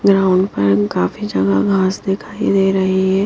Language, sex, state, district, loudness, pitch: Hindi, female, Haryana, Jhajjar, -16 LUFS, 190 Hz